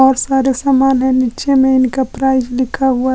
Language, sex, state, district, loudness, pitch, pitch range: Hindi, female, Bihar, Kaimur, -14 LUFS, 265 Hz, 260-270 Hz